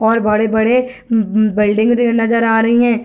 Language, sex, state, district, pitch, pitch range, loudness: Hindi, female, Bihar, Gopalganj, 225 Hz, 220-235 Hz, -14 LUFS